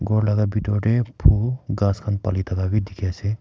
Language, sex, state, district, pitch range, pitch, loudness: Nagamese, male, Nagaland, Kohima, 100-110 Hz, 105 Hz, -22 LUFS